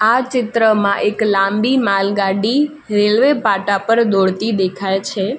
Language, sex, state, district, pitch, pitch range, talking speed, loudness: Gujarati, female, Gujarat, Valsad, 210 Hz, 195-230 Hz, 120 wpm, -15 LUFS